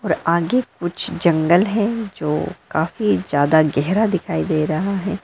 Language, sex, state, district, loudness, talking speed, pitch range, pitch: Hindi, female, Arunachal Pradesh, Lower Dibang Valley, -19 LUFS, 150 wpm, 155-200 Hz, 175 Hz